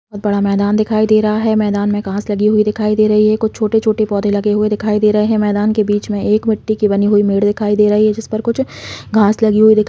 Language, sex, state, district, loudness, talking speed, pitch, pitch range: Hindi, female, Chhattisgarh, Balrampur, -14 LUFS, 250 wpm, 210 Hz, 205-215 Hz